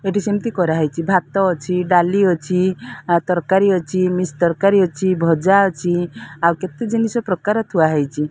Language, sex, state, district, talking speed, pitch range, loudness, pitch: Odia, female, Odisha, Sambalpur, 150 wpm, 170-195 Hz, -17 LUFS, 180 Hz